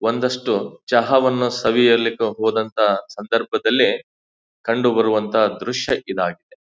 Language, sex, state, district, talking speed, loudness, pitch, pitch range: Kannada, male, Karnataka, Bijapur, 80 wpm, -19 LUFS, 115 Hz, 105-120 Hz